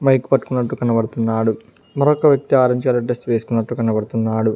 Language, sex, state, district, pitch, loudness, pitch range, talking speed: Telugu, male, Telangana, Mahabubabad, 120 Hz, -18 LUFS, 115-135 Hz, 130 wpm